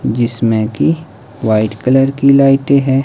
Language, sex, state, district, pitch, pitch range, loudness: Hindi, male, Himachal Pradesh, Shimla, 135 Hz, 115-140 Hz, -13 LUFS